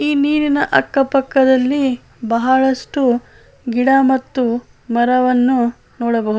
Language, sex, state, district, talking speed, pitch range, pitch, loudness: Kannada, female, Karnataka, Chamarajanagar, 75 wpm, 240-270 Hz, 260 Hz, -16 LUFS